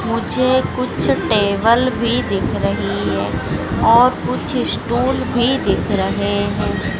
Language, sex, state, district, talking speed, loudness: Hindi, female, Madhya Pradesh, Dhar, 120 wpm, -17 LUFS